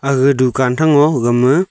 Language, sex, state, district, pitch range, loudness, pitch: Wancho, male, Arunachal Pradesh, Longding, 130-145 Hz, -13 LUFS, 135 Hz